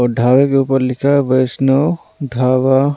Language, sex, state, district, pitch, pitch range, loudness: Hindi, male, Punjab, Pathankot, 135 Hz, 130-140 Hz, -14 LUFS